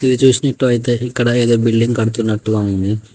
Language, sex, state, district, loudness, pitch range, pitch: Telugu, male, Telangana, Hyderabad, -15 LUFS, 110-125 Hz, 120 Hz